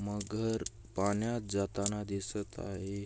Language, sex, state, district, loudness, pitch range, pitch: Marathi, male, Maharashtra, Aurangabad, -36 LUFS, 100-110 Hz, 100 Hz